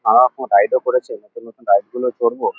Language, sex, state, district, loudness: Bengali, male, West Bengal, Kolkata, -17 LUFS